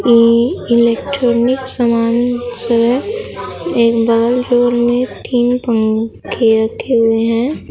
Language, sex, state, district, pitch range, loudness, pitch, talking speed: Hindi, female, Bihar, Katihar, 230-245 Hz, -14 LUFS, 235 Hz, 110 wpm